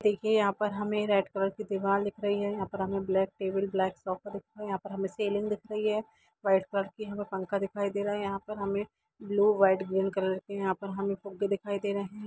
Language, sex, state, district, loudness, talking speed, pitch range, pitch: Hindi, female, Bihar, Sitamarhi, -31 LUFS, 245 wpm, 195-205 Hz, 200 Hz